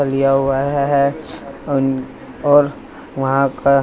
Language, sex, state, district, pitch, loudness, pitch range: Hindi, male, Bihar, West Champaran, 140 Hz, -17 LUFS, 135-140 Hz